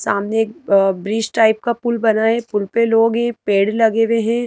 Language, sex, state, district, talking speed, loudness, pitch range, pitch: Hindi, female, Madhya Pradesh, Bhopal, 215 wpm, -17 LUFS, 215-230 Hz, 225 Hz